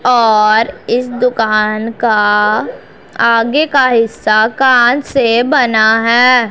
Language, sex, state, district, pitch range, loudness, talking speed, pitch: Hindi, female, Punjab, Pathankot, 220-250 Hz, -11 LUFS, 100 wpm, 230 Hz